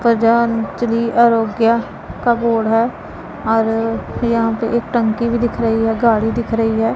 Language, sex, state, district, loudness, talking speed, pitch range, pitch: Hindi, female, Punjab, Pathankot, -16 LUFS, 155 wpm, 225-235 Hz, 230 Hz